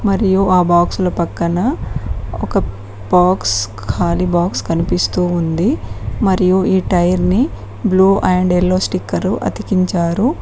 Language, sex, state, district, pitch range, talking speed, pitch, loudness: Telugu, female, Telangana, Mahabubabad, 165-190 Hz, 110 wpm, 180 Hz, -15 LUFS